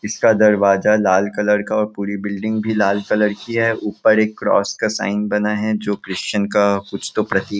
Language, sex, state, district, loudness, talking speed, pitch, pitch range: Hindi, male, Chhattisgarh, Raigarh, -18 LUFS, 205 wpm, 105 Hz, 100-105 Hz